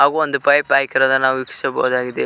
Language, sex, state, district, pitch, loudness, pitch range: Kannada, male, Karnataka, Koppal, 135 Hz, -16 LUFS, 130-140 Hz